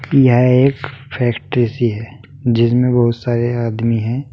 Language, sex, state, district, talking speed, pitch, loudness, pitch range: Hindi, male, Uttar Pradesh, Saharanpur, 140 wpm, 120 Hz, -15 LUFS, 115-130 Hz